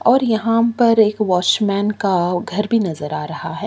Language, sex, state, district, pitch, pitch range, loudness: Hindi, female, Chhattisgarh, Kabirdham, 210 Hz, 180-225 Hz, -17 LUFS